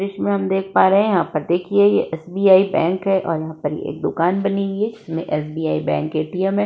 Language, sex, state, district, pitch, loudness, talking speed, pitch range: Hindi, female, Uttar Pradesh, Budaun, 190 Hz, -19 LUFS, 250 wpm, 165-195 Hz